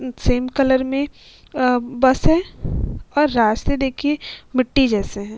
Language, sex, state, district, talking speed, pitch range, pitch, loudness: Hindi, female, Uttar Pradesh, Hamirpur, 135 wpm, 245-275 Hz, 260 Hz, -19 LUFS